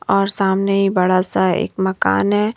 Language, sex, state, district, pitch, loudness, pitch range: Hindi, female, Madhya Pradesh, Bhopal, 195 Hz, -17 LUFS, 190-200 Hz